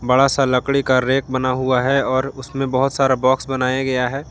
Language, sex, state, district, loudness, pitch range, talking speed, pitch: Hindi, male, Jharkhand, Garhwa, -18 LUFS, 130-135 Hz, 220 wpm, 130 Hz